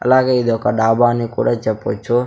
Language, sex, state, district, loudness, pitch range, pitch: Telugu, male, Andhra Pradesh, Sri Satya Sai, -16 LUFS, 115-125 Hz, 120 Hz